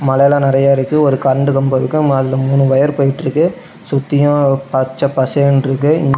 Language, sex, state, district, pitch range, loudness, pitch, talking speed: Tamil, male, Tamil Nadu, Namakkal, 135-145 Hz, -13 LUFS, 140 Hz, 155 wpm